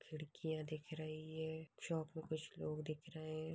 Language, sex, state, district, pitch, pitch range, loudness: Hindi, female, Chhattisgarh, Bastar, 155 Hz, 155-160 Hz, -47 LUFS